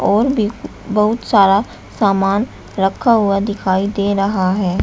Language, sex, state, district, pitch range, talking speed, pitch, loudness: Hindi, female, Uttar Pradesh, Shamli, 195-215 Hz, 135 wpm, 200 Hz, -16 LUFS